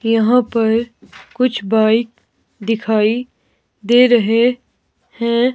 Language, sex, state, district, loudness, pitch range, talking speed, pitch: Hindi, female, Himachal Pradesh, Shimla, -15 LUFS, 225-245 Hz, 85 wpm, 230 Hz